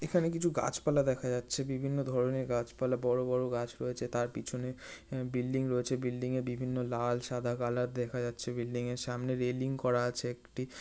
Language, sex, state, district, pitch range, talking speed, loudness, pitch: Bengali, male, West Bengal, North 24 Parganas, 120-130 Hz, 170 wpm, -34 LUFS, 125 Hz